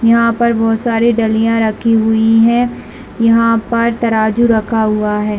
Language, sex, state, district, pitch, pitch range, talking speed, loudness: Hindi, female, Chhattisgarh, Bilaspur, 225 Hz, 220-230 Hz, 155 wpm, -13 LUFS